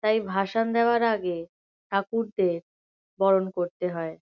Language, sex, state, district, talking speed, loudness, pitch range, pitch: Bengali, female, West Bengal, Kolkata, 115 wpm, -26 LUFS, 180-225 Hz, 195 Hz